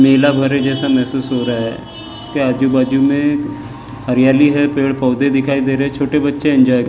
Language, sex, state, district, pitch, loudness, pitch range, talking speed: Hindi, male, Maharashtra, Gondia, 135 Hz, -15 LUFS, 130-140 Hz, 210 wpm